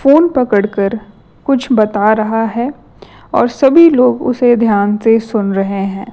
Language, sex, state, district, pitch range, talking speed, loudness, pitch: Hindi, female, Chhattisgarh, Raipur, 205-250 Hz, 145 wpm, -12 LUFS, 225 Hz